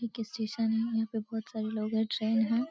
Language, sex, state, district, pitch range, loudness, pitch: Hindi, female, Uttar Pradesh, Deoria, 220-225 Hz, -32 LUFS, 225 Hz